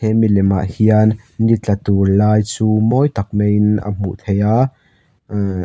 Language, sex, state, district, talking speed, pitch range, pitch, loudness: Mizo, male, Mizoram, Aizawl, 190 wpm, 100-110 Hz, 105 Hz, -15 LUFS